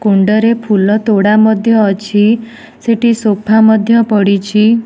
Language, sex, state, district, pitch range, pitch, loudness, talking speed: Odia, female, Odisha, Nuapada, 205-230 Hz, 215 Hz, -10 LUFS, 125 wpm